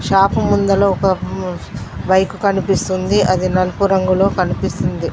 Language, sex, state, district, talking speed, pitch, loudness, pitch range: Telugu, female, Telangana, Mahabubabad, 105 wpm, 190 Hz, -16 LUFS, 185-195 Hz